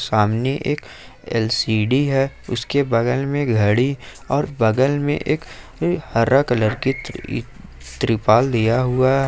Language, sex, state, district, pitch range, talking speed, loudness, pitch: Hindi, male, Jharkhand, Ranchi, 115-135 Hz, 125 wpm, -19 LUFS, 130 Hz